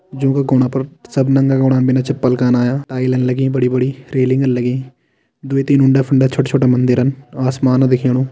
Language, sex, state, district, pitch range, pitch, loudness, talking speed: Kumaoni, male, Uttarakhand, Tehri Garhwal, 130-135 Hz, 130 Hz, -15 LUFS, 195 wpm